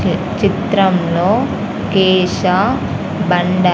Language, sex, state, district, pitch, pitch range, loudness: Telugu, female, Andhra Pradesh, Sri Satya Sai, 185 Hz, 180-195 Hz, -15 LUFS